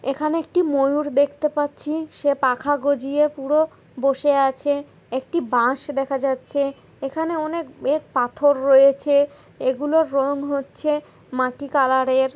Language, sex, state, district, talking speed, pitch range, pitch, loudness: Bengali, female, West Bengal, Kolkata, 120 wpm, 270-295 Hz, 285 Hz, -21 LUFS